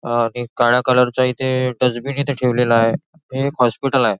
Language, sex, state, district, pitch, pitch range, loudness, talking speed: Marathi, male, Maharashtra, Nagpur, 125 Hz, 120-130 Hz, -17 LUFS, 185 wpm